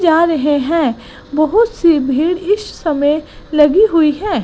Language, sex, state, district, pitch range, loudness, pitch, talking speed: Hindi, female, Gujarat, Gandhinagar, 295-360 Hz, -14 LUFS, 320 Hz, 150 wpm